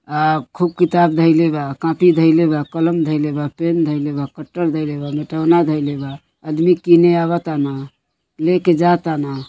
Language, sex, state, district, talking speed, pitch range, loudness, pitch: Bhojpuri, female, Uttar Pradesh, Deoria, 150 wpm, 145-170 Hz, -16 LUFS, 160 Hz